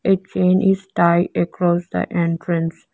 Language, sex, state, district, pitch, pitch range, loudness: English, female, Arunachal Pradesh, Lower Dibang Valley, 175 Hz, 170-190 Hz, -19 LUFS